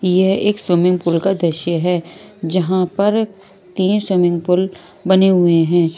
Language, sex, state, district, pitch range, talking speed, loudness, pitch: Hindi, female, Punjab, Kapurthala, 175-195 Hz, 150 wpm, -16 LUFS, 180 Hz